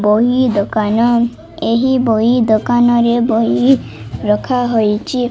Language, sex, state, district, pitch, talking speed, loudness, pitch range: Odia, female, Odisha, Malkangiri, 230 Hz, 90 wpm, -14 LUFS, 210-240 Hz